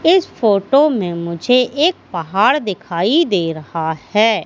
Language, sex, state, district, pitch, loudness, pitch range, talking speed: Hindi, female, Madhya Pradesh, Katni, 200 Hz, -16 LUFS, 170-250 Hz, 135 wpm